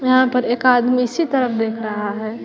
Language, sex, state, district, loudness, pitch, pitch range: Hindi, female, Bihar, West Champaran, -18 LUFS, 245 Hz, 225-255 Hz